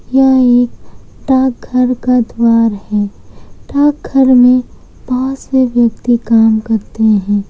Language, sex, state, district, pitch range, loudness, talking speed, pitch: Hindi, female, Bihar, Kishanganj, 225-260 Hz, -12 LUFS, 120 wpm, 245 Hz